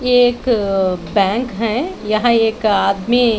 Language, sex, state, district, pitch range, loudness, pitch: Hindi, female, Chandigarh, Chandigarh, 200-245 Hz, -16 LUFS, 225 Hz